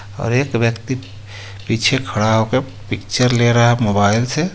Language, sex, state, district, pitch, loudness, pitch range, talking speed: Hindi, male, Jharkhand, Ranchi, 115 Hz, -17 LUFS, 105-125 Hz, 160 wpm